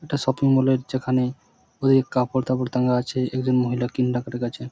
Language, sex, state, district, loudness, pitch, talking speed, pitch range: Bengali, male, West Bengal, Purulia, -23 LUFS, 130 Hz, 165 wpm, 125-130 Hz